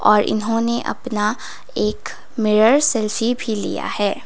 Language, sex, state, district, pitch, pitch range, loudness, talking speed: Hindi, female, Sikkim, Gangtok, 220 Hz, 210-235 Hz, -19 LUFS, 125 wpm